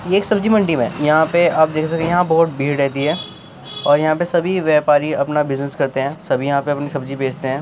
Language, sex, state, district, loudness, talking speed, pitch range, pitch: Hindi, male, Uttar Pradesh, Muzaffarnagar, -17 LUFS, 260 wpm, 140-165 Hz, 150 Hz